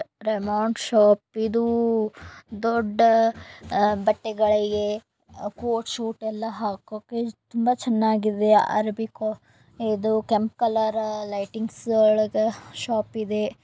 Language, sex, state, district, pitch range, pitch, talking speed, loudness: Kannada, female, Karnataka, Belgaum, 210-225 Hz, 220 Hz, 85 wpm, -24 LUFS